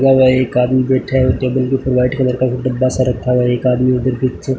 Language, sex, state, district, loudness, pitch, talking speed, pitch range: Hindi, male, Rajasthan, Bikaner, -15 LUFS, 130 Hz, 290 wpm, 125-130 Hz